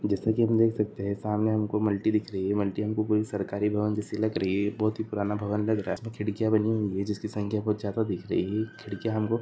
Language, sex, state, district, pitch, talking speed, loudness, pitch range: Hindi, male, Maharashtra, Aurangabad, 105 Hz, 265 wpm, -28 LUFS, 105-110 Hz